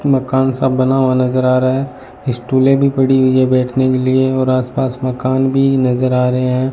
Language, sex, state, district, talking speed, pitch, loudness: Hindi, male, Rajasthan, Bikaner, 215 wpm, 130 Hz, -14 LUFS